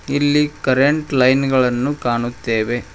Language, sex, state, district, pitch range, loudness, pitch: Kannada, male, Karnataka, Koppal, 120-145 Hz, -17 LUFS, 130 Hz